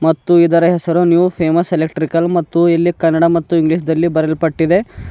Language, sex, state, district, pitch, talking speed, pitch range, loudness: Kannada, female, Karnataka, Bidar, 170 Hz, 165 wpm, 160-170 Hz, -14 LUFS